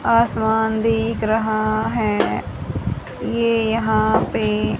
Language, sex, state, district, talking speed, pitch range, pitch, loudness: Hindi, female, Haryana, Charkhi Dadri, 85 wpm, 215-225 Hz, 220 Hz, -20 LUFS